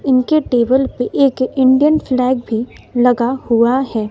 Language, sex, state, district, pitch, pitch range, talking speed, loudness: Hindi, female, Bihar, West Champaran, 255 Hz, 240-265 Hz, 145 wpm, -15 LUFS